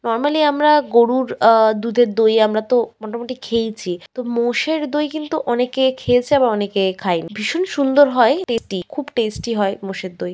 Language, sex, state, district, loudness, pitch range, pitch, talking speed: Bengali, female, West Bengal, Malda, -18 LUFS, 215-270 Hz, 235 Hz, 160 wpm